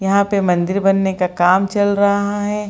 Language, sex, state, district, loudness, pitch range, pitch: Hindi, female, Bihar, Lakhisarai, -16 LUFS, 190-200 Hz, 195 Hz